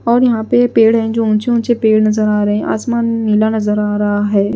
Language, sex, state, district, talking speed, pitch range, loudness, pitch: Hindi, female, Punjab, Pathankot, 250 wpm, 210-230 Hz, -14 LUFS, 220 Hz